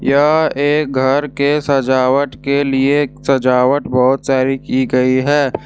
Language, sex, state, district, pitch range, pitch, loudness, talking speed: Hindi, male, Jharkhand, Deoghar, 130-145 Hz, 135 Hz, -14 LUFS, 140 wpm